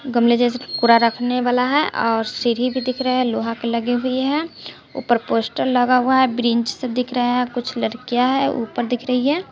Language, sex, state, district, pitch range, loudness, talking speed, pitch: Hindi, female, Bihar, West Champaran, 235-255 Hz, -19 LUFS, 215 wpm, 245 Hz